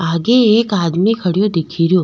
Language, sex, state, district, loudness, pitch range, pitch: Rajasthani, female, Rajasthan, Nagaur, -14 LUFS, 170-220 Hz, 185 Hz